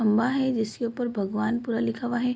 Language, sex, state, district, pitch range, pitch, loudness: Hindi, female, Bihar, Vaishali, 220-245 Hz, 235 Hz, -27 LUFS